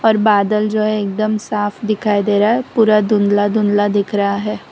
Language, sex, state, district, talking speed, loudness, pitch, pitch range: Hindi, female, Gujarat, Valsad, 205 wpm, -15 LUFS, 210 Hz, 205-215 Hz